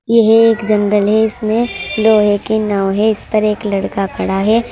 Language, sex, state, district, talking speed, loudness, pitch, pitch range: Hindi, female, Uttar Pradesh, Saharanpur, 190 wpm, -14 LUFS, 215 Hz, 205-220 Hz